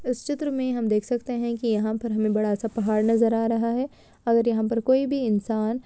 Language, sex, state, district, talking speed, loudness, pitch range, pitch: Hindi, female, Bihar, Darbhanga, 245 wpm, -24 LUFS, 220-250 Hz, 230 Hz